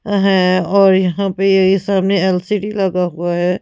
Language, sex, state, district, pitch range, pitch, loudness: Hindi, female, Punjab, Pathankot, 180-195 Hz, 190 Hz, -14 LUFS